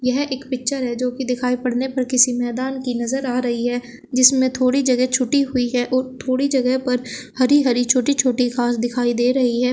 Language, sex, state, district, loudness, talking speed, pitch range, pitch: Hindi, female, Uttar Pradesh, Shamli, -19 LUFS, 215 wpm, 245-260 Hz, 255 Hz